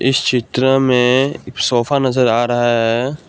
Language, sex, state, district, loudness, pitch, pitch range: Hindi, male, Assam, Kamrup Metropolitan, -15 LUFS, 125 Hz, 120-135 Hz